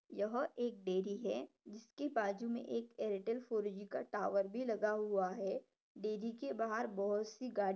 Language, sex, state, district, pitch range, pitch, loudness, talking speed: Hindi, female, Maharashtra, Dhule, 200-235 Hz, 215 Hz, -40 LUFS, 180 wpm